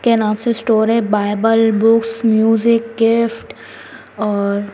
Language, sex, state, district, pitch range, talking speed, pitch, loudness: Hindi, female, Delhi, New Delhi, 215-230 Hz, 125 wpm, 225 Hz, -15 LUFS